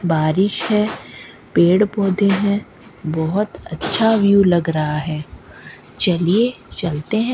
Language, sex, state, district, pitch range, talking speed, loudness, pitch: Hindi, female, Rajasthan, Bikaner, 165-210 Hz, 115 wpm, -17 LUFS, 195 Hz